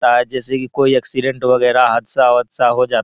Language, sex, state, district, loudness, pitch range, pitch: Maithili, male, Bihar, Araria, -15 LUFS, 120-130 Hz, 125 Hz